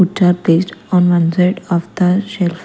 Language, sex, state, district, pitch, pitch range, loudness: English, female, Punjab, Kapurthala, 180 Hz, 175-185 Hz, -14 LUFS